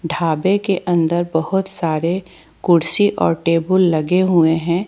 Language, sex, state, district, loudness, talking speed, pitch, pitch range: Hindi, female, Jharkhand, Ranchi, -17 LUFS, 135 wpm, 170 Hz, 165-185 Hz